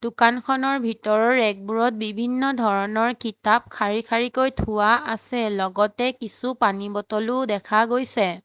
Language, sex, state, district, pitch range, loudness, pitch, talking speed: Assamese, female, Assam, Hailakandi, 210-245 Hz, -22 LUFS, 225 Hz, 130 wpm